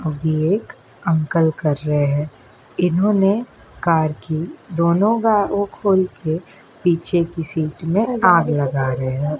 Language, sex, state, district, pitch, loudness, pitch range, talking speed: Hindi, male, Madhya Pradesh, Dhar, 165 Hz, -19 LUFS, 150-190 Hz, 140 wpm